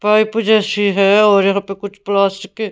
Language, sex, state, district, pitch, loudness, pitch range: Hindi, female, Punjab, Pathankot, 205 Hz, -14 LUFS, 200-215 Hz